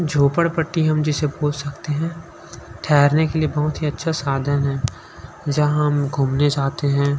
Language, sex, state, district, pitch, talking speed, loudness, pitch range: Hindi, male, Chhattisgarh, Sukma, 145 Hz, 160 wpm, -20 LUFS, 140-155 Hz